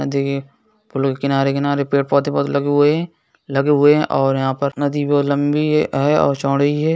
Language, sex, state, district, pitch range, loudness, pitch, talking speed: Hindi, male, Bihar, East Champaran, 140-145 Hz, -17 LUFS, 140 Hz, 215 wpm